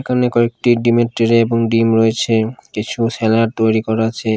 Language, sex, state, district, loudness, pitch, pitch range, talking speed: Bengali, male, Odisha, Khordha, -15 LUFS, 115 Hz, 110-120 Hz, 165 wpm